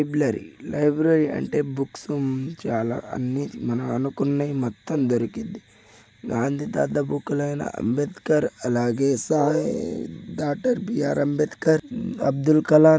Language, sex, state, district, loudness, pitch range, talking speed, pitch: Telugu, male, Telangana, Nalgonda, -24 LUFS, 130-150 Hz, 100 wpm, 145 Hz